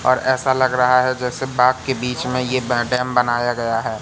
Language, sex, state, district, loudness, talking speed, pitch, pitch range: Hindi, male, Madhya Pradesh, Katni, -18 LUFS, 225 wpm, 125 Hz, 125-130 Hz